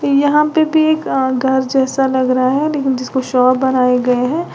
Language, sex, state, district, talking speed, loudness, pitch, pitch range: Hindi, female, Uttar Pradesh, Lalitpur, 210 wpm, -14 LUFS, 265 Hz, 255-290 Hz